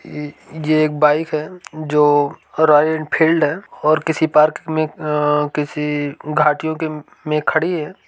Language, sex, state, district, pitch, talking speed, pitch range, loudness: Hindi, male, Bihar, East Champaran, 155 Hz, 150 wpm, 150-160 Hz, -17 LUFS